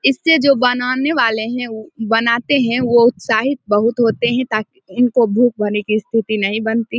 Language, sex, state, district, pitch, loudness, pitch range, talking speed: Hindi, female, Bihar, Samastipur, 235 Hz, -16 LUFS, 220-250 Hz, 165 wpm